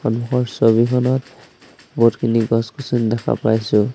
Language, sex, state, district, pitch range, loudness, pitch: Assamese, male, Assam, Sonitpur, 110-125 Hz, -18 LUFS, 115 Hz